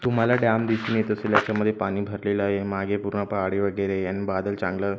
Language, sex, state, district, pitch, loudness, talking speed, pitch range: Marathi, male, Maharashtra, Gondia, 100 Hz, -25 LUFS, 195 wpm, 100-110 Hz